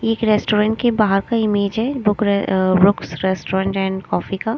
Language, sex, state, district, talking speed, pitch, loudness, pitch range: Hindi, female, Chandigarh, Chandigarh, 195 wpm, 205 Hz, -18 LUFS, 190-220 Hz